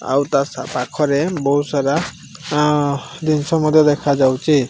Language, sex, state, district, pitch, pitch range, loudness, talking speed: Odia, male, Odisha, Malkangiri, 145 Hz, 140-155 Hz, -17 LUFS, 130 wpm